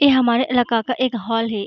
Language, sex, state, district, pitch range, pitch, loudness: Hindi, female, Bihar, Gaya, 225-255 Hz, 240 Hz, -19 LUFS